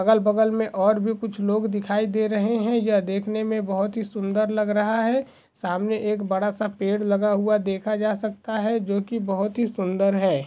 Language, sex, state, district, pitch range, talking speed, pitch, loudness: Hindi, male, Goa, North and South Goa, 200-220 Hz, 205 wpm, 210 Hz, -23 LUFS